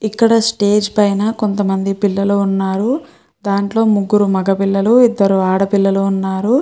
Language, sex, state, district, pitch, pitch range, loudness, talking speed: Telugu, female, Andhra Pradesh, Chittoor, 200 Hz, 195-215 Hz, -14 LUFS, 135 wpm